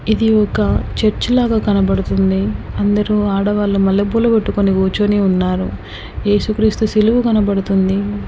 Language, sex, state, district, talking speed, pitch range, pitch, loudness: Telugu, female, Telangana, Karimnagar, 115 wpm, 190-215 Hz, 205 Hz, -15 LUFS